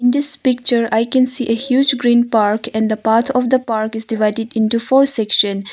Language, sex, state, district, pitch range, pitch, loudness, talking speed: English, female, Arunachal Pradesh, Longding, 220-255 Hz, 230 Hz, -15 LUFS, 220 wpm